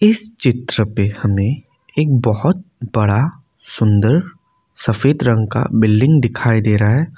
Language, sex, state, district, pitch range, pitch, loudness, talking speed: Hindi, male, Assam, Kamrup Metropolitan, 110-145 Hz, 120 Hz, -15 LUFS, 135 wpm